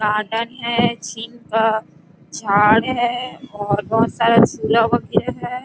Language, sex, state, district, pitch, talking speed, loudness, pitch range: Hindi, female, Chhattisgarh, Rajnandgaon, 225 Hz, 125 wpm, -18 LUFS, 210-235 Hz